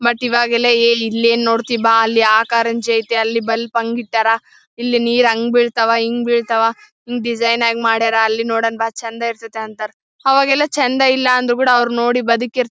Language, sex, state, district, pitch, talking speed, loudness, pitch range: Kannada, female, Karnataka, Bellary, 235 Hz, 175 wpm, -15 LUFS, 225-240 Hz